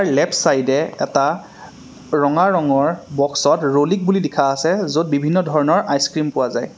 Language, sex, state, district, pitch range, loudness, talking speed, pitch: Assamese, male, Assam, Sonitpur, 140-170 Hz, -17 LUFS, 135 wpm, 150 Hz